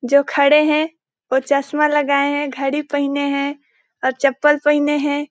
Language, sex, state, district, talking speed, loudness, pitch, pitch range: Hindi, female, Chhattisgarh, Balrampur, 170 wpm, -17 LUFS, 285 Hz, 280-295 Hz